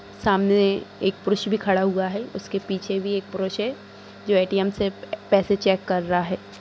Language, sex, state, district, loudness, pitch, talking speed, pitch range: Hindi, female, Bihar, East Champaran, -23 LUFS, 195 Hz, 190 wpm, 190-200 Hz